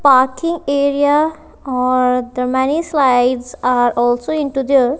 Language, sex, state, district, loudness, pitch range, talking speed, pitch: English, female, Punjab, Kapurthala, -16 LUFS, 250-290 Hz, 120 wpm, 265 Hz